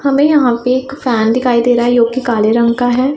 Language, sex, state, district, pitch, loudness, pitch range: Hindi, female, Punjab, Pathankot, 245 Hz, -12 LUFS, 235-260 Hz